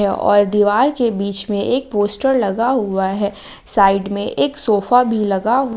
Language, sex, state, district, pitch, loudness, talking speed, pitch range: Hindi, female, Jharkhand, Palamu, 210 Hz, -17 LUFS, 165 wpm, 200-245 Hz